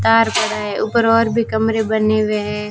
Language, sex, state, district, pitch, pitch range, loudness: Hindi, female, Rajasthan, Jaisalmer, 220 Hz, 215-225 Hz, -17 LUFS